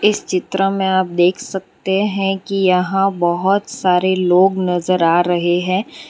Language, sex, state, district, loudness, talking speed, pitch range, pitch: Hindi, female, Gujarat, Valsad, -16 LUFS, 155 wpm, 180-195 Hz, 190 Hz